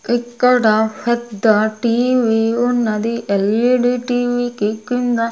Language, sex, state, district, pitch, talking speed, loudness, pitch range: Telugu, female, Andhra Pradesh, Sri Satya Sai, 235 Hz, 90 wpm, -16 LUFS, 220-245 Hz